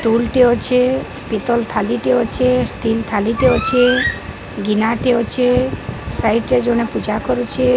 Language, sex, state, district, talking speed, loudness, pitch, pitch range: Odia, male, Odisha, Sambalpur, 145 wpm, -16 LUFS, 240 Hz, 225-250 Hz